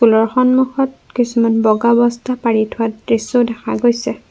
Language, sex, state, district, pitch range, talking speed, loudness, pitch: Assamese, female, Assam, Kamrup Metropolitan, 225-250 Hz, 155 wpm, -15 LUFS, 235 Hz